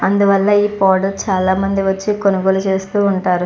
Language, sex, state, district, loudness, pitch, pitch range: Telugu, female, Andhra Pradesh, Chittoor, -15 LUFS, 195 Hz, 190-200 Hz